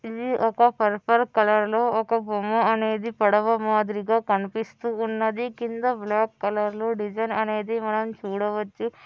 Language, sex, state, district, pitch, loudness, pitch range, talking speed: Telugu, female, Andhra Pradesh, Anantapur, 220 Hz, -24 LUFS, 210-230 Hz, 120 wpm